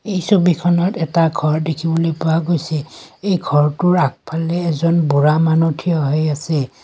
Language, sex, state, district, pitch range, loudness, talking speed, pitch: Assamese, female, Assam, Kamrup Metropolitan, 155-175 Hz, -17 LUFS, 140 wpm, 165 Hz